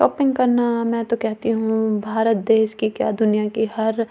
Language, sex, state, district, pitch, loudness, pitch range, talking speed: Hindi, female, Delhi, New Delhi, 225 Hz, -20 LUFS, 220-230 Hz, 205 wpm